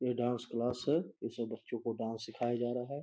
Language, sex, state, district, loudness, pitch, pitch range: Hindi, male, Uttar Pradesh, Gorakhpur, -37 LUFS, 120 Hz, 115-125 Hz